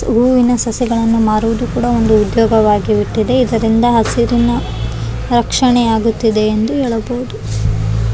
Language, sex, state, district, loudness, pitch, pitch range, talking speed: Kannada, female, Karnataka, Raichur, -14 LUFS, 225 Hz, 215-240 Hz, 105 wpm